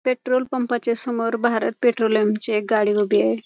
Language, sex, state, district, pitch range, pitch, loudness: Marathi, female, Maharashtra, Pune, 210-245 Hz, 230 Hz, -20 LUFS